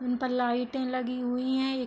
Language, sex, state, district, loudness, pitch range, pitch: Hindi, female, Uttar Pradesh, Hamirpur, -29 LUFS, 245-260 Hz, 255 Hz